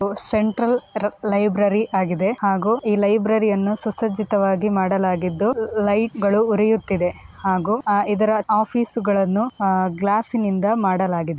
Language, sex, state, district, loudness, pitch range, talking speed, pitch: Kannada, female, Karnataka, Dakshina Kannada, -20 LUFS, 195-220 Hz, 105 wpm, 210 Hz